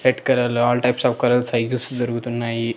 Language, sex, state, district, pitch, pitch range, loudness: Telugu, male, Andhra Pradesh, Annamaya, 120 Hz, 120-125 Hz, -20 LUFS